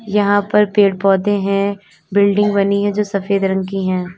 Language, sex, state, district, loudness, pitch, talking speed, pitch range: Hindi, female, Uttar Pradesh, Lalitpur, -16 LUFS, 200 Hz, 185 wpm, 195-205 Hz